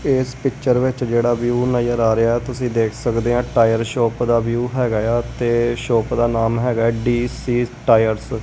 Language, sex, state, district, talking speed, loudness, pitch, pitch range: Punjabi, male, Punjab, Kapurthala, 200 wpm, -18 LUFS, 120 Hz, 115-125 Hz